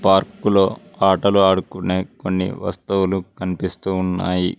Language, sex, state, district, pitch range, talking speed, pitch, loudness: Telugu, male, Telangana, Mahabubabad, 90-100 Hz, 90 wpm, 95 Hz, -20 LUFS